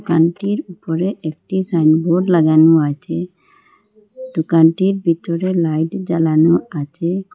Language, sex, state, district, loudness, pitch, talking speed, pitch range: Bengali, female, Assam, Hailakandi, -16 LUFS, 170 Hz, 90 wpm, 160-185 Hz